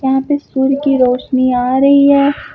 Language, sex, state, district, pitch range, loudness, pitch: Hindi, female, Uttar Pradesh, Lucknow, 255-280 Hz, -12 LUFS, 270 Hz